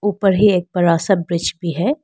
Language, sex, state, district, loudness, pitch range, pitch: Hindi, female, Arunachal Pradesh, Lower Dibang Valley, -17 LUFS, 170-205 Hz, 185 Hz